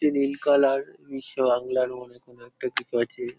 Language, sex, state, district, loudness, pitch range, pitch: Bengali, male, West Bengal, Paschim Medinipur, -25 LUFS, 125-140 Hz, 135 Hz